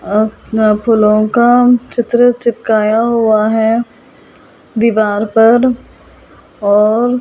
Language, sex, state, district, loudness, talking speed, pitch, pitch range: Hindi, female, Delhi, New Delhi, -12 LUFS, 100 wpm, 225 Hz, 215-240 Hz